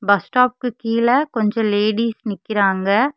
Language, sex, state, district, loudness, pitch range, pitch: Tamil, female, Tamil Nadu, Kanyakumari, -18 LUFS, 205-245 Hz, 220 Hz